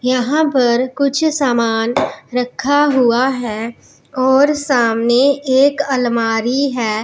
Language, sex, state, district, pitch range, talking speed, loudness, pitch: Hindi, male, Punjab, Pathankot, 235-280 Hz, 100 wpm, -15 LUFS, 255 Hz